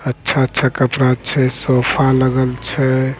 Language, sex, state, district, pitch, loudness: Angika, male, Bihar, Begusarai, 130 Hz, -15 LUFS